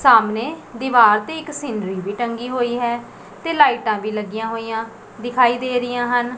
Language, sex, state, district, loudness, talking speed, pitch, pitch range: Punjabi, female, Punjab, Pathankot, -19 LUFS, 170 wpm, 240 Hz, 220-250 Hz